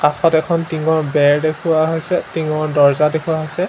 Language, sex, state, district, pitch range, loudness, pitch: Assamese, male, Assam, Sonitpur, 150-165 Hz, -16 LUFS, 155 Hz